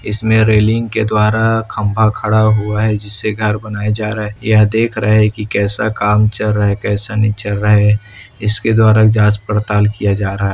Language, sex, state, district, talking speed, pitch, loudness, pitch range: Hindi, male, Chhattisgarh, Kabirdham, 205 wpm, 105 Hz, -14 LUFS, 105-110 Hz